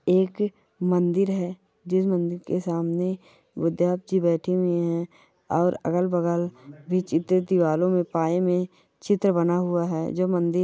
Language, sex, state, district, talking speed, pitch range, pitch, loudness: Hindi, female, Chhattisgarh, Rajnandgaon, 105 wpm, 170-185 Hz, 180 Hz, -24 LUFS